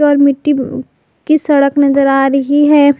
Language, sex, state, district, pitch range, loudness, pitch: Hindi, female, Jharkhand, Palamu, 275-290 Hz, -11 LUFS, 280 Hz